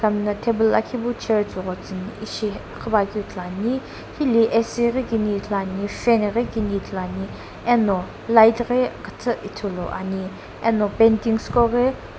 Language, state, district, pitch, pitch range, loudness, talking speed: Sumi, Nagaland, Dimapur, 220 Hz, 200-235 Hz, -22 LUFS, 155 wpm